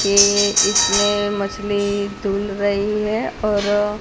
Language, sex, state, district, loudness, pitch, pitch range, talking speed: Hindi, female, Gujarat, Gandhinagar, -18 LUFS, 205 Hz, 200-210 Hz, 90 wpm